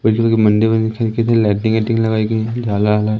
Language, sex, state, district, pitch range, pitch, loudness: Hindi, male, Madhya Pradesh, Umaria, 110-115 Hz, 110 Hz, -16 LUFS